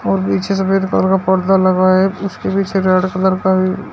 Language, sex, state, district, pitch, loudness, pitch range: Hindi, male, Uttar Pradesh, Shamli, 190 Hz, -15 LUFS, 185-195 Hz